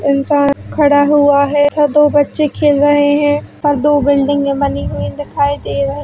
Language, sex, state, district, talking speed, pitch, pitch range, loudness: Hindi, female, Chhattisgarh, Bilaspur, 180 wpm, 285 Hz, 280-290 Hz, -13 LUFS